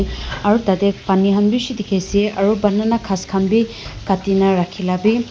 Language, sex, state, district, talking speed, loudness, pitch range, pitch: Nagamese, female, Nagaland, Dimapur, 180 wpm, -17 LUFS, 195-215 Hz, 200 Hz